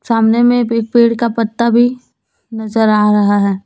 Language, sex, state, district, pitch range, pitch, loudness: Hindi, female, Jharkhand, Deoghar, 215-235 Hz, 230 Hz, -13 LUFS